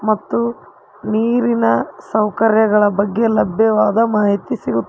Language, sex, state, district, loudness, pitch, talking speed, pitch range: Kannada, female, Karnataka, Koppal, -16 LUFS, 215 Hz, 85 wpm, 205-225 Hz